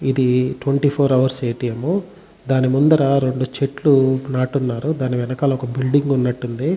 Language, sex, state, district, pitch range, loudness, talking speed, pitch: Telugu, male, Andhra Pradesh, Chittoor, 130-140 Hz, -18 LUFS, 140 wpm, 130 Hz